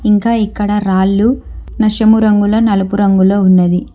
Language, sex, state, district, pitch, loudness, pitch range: Telugu, female, Telangana, Hyderabad, 205 Hz, -11 LUFS, 195-220 Hz